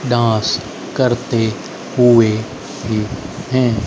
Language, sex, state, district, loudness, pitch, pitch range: Hindi, male, Haryana, Rohtak, -17 LUFS, 115 Hz, 110-125 Hz